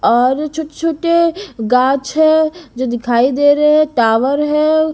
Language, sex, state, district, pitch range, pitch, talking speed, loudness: Hindi, female, Bihar, Patna, 255-315 Hz, 300 Hz, 135 wpm, -14 LUFS